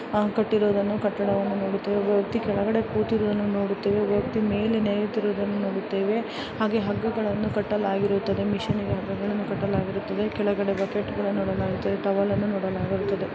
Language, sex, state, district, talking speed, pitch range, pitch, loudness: Kannada, female, Karnataka, Dharwad, 115 wpm, 200-210 Hz, 205 Hz, -25 LUFS